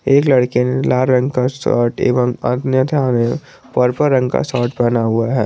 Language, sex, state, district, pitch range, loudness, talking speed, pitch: Hindi, male, Jharkhand, Garhwa, 120-130 Hz, -16 LUFS, 185 wpm, 125 Hz